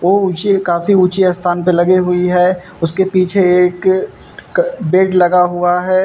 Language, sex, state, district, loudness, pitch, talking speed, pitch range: Hindi, male, Uttar Pradesh, Lucknow, -13 LUFS, 180 Hz, 160 wpm, 180-190 Hz